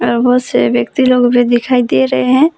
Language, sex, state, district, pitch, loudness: Hindi, female, Jharkhand, Palamu, 245 Hz, -12 LUFS